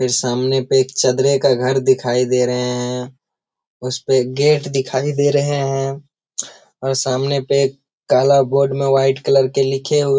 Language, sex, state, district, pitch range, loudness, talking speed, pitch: Hindi, male, Bihar, Jamui, 130-140 Hz, -17 LUFS, 170 wpm, 135 Hz